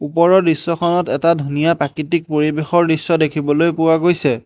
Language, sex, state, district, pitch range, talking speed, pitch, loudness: Assamese, male, Assam, Hailakandi, 150-170 Hz, 135 wpm, 165 Hz, -16 LUFS